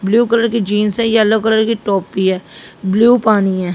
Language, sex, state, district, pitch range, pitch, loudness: Hindi, female, Haryana, Jhajjar, 190-230 Hz, 215 Hz, -14 LUFS